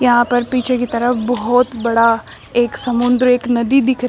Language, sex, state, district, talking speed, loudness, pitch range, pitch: Hindi, female, Uttar Pradesh, Shamli, 175 wpm, -15 LUFS, 240-250 Hz, 245 Hz